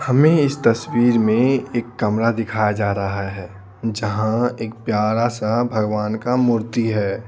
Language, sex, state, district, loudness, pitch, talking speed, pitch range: Hindi, male, Bihar, Patna, -19 LUFS, 115 Hz, 150 wpm, 105-120 Hz